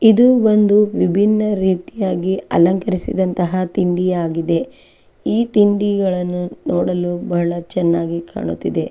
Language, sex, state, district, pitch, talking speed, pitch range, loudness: Kannada, female, Karnataka, Chamarajanagar, 185 Hz, 90 wpm, 175-205 Hz, -17 LUFS